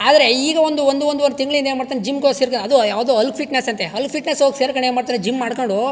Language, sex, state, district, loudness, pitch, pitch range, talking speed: Kannada, male, Karnataka, Chamarajanagar, -17 LUFS, 265 Hz, 250-280 Hz, 255 wpm